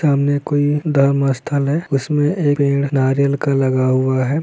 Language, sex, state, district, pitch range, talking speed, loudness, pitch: Hindi, male, Bihar, Lakhisarai, 135-145 Hz, 165 wpm, -17 LUFS, 140 Hz